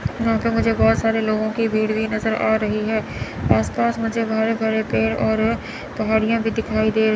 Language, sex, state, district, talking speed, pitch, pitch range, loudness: Hindi, female, Chandigarh, Chandigarh, 195 wpm, 220 Hz, 215-225 Hz, -20 LUFS